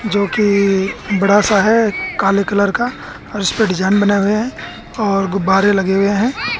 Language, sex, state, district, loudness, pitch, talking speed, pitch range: Hindi, male, Haryana, Jhajjar, -15 LUFS, 200 Hz, 175 wpm, 195-215 Hz